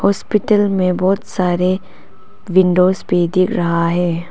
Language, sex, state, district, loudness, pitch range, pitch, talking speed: Hindi, female, Arunachal Pradesh, Papum Pare, -16 LUFS, 175-195 Hz, 185 Hz, 125 wpm